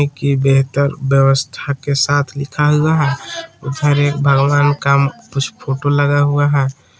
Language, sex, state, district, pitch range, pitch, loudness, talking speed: Hindi, male, Jharkhand, Palamu, 140-145 Hz, 140 Hz, -15 LUFS, 145 wpm